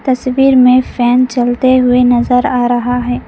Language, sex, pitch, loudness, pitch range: Hindi, female, 250 Hz, -11 LUFS, 245-255 Hz